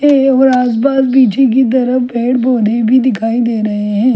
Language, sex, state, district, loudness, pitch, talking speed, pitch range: Hindi, female, Delhi, New Delhi, -12 LUFS, 250 Hz, 185 wpm, 235-260 Hz